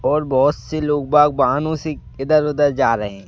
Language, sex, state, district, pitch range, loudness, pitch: Hindi, male, Madhya Pradesh, Bhopal, 135-150 Hz, -17 LUFS, 145 Hz